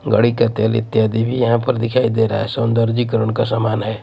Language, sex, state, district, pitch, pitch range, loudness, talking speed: Hindi, male, Odisha, Nuapada, 115 Hz, 110-120 Hz, -17 LUFS, 225 wpm